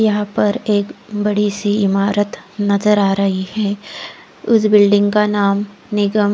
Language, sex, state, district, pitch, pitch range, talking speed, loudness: Hindi, female, Odisha, Khordha, 205 Hz, 200-210 Hz, 140 wpm, -16 LUFS